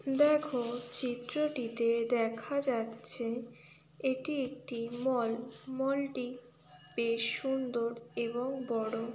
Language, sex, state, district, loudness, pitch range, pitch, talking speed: Bengali, female, West Bengal, Purulia, -34 LUFS, 230-265 Hz, 240 Hz, 85 wpm